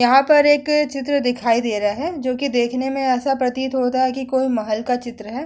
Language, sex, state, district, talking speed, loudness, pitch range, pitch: Hindi, female, Uttar Pradesh, Hamirpur, 240 wpm, -19 LUFS, 245-275 Hz, 260 Hz